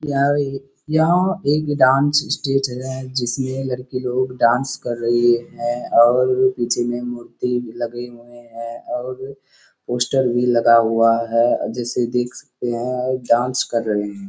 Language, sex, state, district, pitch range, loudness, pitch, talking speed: Hindi, male, Bihar, Kishanganj, 120-130 Hz, -19 LUFS, 125 Hz, 145 wpm